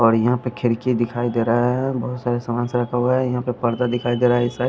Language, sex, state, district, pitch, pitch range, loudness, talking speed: Hindi, male, Punjab, Kapurthala, 120 Hz, 120-125 Hz, -21 LUFS, 305 wpm